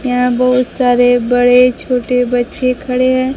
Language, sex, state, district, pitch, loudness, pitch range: Hindi, female, Bihar, Kaimur, 250 Hz, -12 LUFS, 245-255 Hz